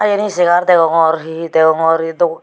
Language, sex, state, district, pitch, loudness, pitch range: Chakma, female, Tripura, Unakoti, 165 Hz, -13 LUFS, 165-175 Hz